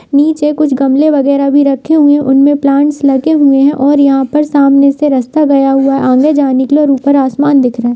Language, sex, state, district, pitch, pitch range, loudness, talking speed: Hindi, female, Bihar, Saharsa, 280 Hz, 270-290 Hz, -9 LUFS, 235 wpm